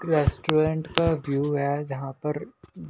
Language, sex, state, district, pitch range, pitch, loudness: Hindi, male, Delhi, New Delhi, 140-155 Hz, 150 Hz, -26 LUFS